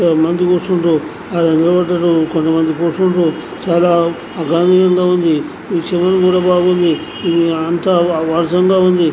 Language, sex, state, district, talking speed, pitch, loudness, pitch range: Telugu, male, Andhra Pradesh, Anantapur, 45 wpm, 170 Hz, -14 LUFS, 165-180 Hz